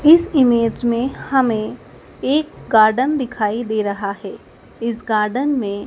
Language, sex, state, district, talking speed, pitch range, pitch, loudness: Hindi, female, Madhya Pradesh, Dhar, 145 wpm, 215-265 Hz, 235 Hz, -18 LUFS